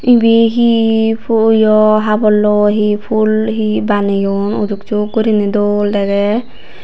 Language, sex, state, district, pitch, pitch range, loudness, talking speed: Chakma, female, Tripura, Unakoti, 215 Hz, 205-225 Hz, -12 LUFS, 105 wpm